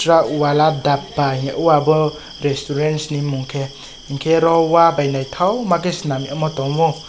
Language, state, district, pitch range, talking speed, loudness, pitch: Kokborok, Tripura, West Tripura, 140-165 Hz, 150 wpm, -17 LUFS, 150 Hz